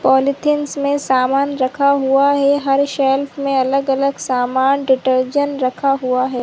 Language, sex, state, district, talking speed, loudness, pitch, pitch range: Hindi, female, Chhattisgarh, Rajnandgaon, 150 wpm, -16 LUFS, 275 Hz, 260-280 Hz